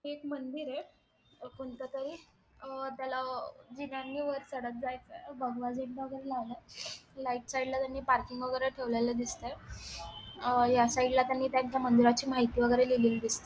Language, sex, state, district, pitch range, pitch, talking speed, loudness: Marathi, female, Maharashtra, Sindhudurg, 245-270 Hz, 260 Hz, 145 wpm, -32 LUFS